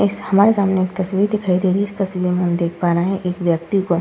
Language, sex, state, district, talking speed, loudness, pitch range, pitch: Hindi, female, Uttar Pradesh, Muzaffarnagar, 315 wpm, -18 LUFS, 175-200 Hz, 185 Hz